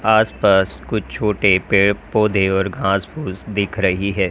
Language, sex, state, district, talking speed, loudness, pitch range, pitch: Hindi, male, Uttar Pradesh, Lalitpur, 165 wpm, -18 LUFS, 95-105 Hz, 100 Hz